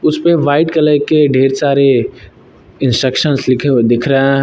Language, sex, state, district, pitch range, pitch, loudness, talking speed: Hindi, male, Uttar Pradesh, Lucknow, 130-150 Hz, 140 Hz, -12 LUFS, 160 wpm